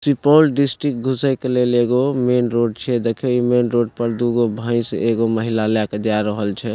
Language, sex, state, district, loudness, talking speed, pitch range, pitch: Maithili, male, Bihar, Supaul, -18 LUFS, 215 wpm, 115-125 Hz, 120 Hz